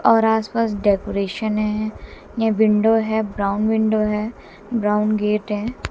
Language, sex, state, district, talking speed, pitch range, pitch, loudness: Hindi, female, Haryana, Jhajjar, 130 wpm, 210-220 Hz, 215 Hz, -20 LUFS